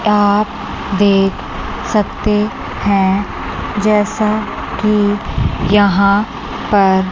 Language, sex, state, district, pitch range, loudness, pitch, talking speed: Hindi, female, Chandigarh, Chandigarh, 200-210 Hz, -15 LUFS, 205 Hz, 75 wpm